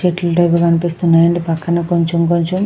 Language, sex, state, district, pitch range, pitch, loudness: Telugu, female, Andhra Pradesh, Krishna, 170-175 Hz, 170 Hz, -14 LUFS